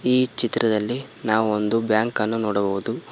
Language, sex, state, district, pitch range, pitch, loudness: Kannada, male, Karnataka, Koppal, 105-120 Hz, 110 Hz, -21 LUFS